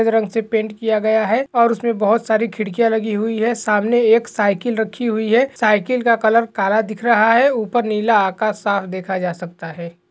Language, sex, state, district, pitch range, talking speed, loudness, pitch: Hindi, male, Maharashtra, Nagpur, 210-230 Hz, 210 wpm, -17 LUFS, 220 Hz